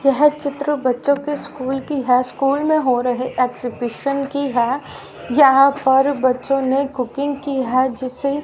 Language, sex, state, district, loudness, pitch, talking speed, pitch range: Hindi, female, Haryana, Rohtak, -18 LUFS, 270 Hz, 155 wpm, 255-280 Hz